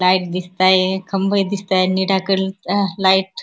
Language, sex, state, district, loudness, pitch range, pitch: Marathi, female, Maharashtra, Chandrapur, -17 LUFS, 185-195 Hz, 190 Hz